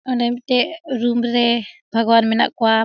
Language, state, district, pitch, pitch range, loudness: Surjapuri, Bihar, Kishanganj, 240 Hz, 230-250 Hz, -18 LUFS